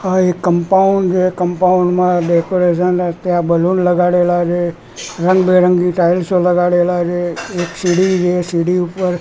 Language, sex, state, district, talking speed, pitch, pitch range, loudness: Gujarati, male, Gujarat, Gandhinagar, 130 wpm, 180 Hz, 175-185 Hz, -14 LUFS